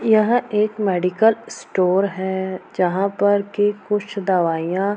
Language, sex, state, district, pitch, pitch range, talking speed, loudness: Hindi, female, Bihar, Purnia, 200 Hz, 185-210 Hz, 135 wpm, -20 LUFS